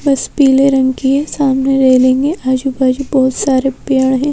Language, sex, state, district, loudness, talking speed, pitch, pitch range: Hindi, female, Madhya Pradesh, Bhopal, -12 LUFS, 180 wpm, 265 Hz, 260-275 Hz